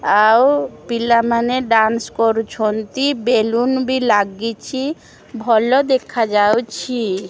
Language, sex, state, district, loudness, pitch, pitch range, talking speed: Odia, female, Odisha, Khordha, -17 LUFS, 230 Hz, 220-255 Hz, 75 wpm